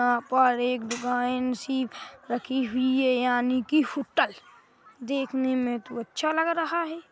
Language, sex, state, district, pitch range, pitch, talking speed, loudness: Hindi, female, Chhattisgarh, Korba, 245-270 Hz, 255 Hz, 150 wpm, -26 LUFS